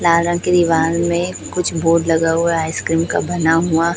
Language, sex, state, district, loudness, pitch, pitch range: Hindi, male, Chhattisgarh, Raipur, -16 LUFS, 170 Hz, 165-170 Hz